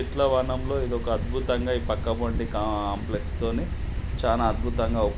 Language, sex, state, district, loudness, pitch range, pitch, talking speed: Telugu, male, Andhra Pradesh, Srikakulam, -27 LUFS, 100-125 Hz, 115 Hz, 140 wpm